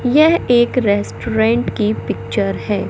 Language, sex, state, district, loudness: Hindi, male, Madhya Pradesh, Katni, -16 LUFS